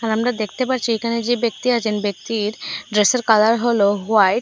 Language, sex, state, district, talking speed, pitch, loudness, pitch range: Bengali, female, Assam, Hailakandi, 190 wpm, 225 Hz, -19 LUFS, 210-240 Hz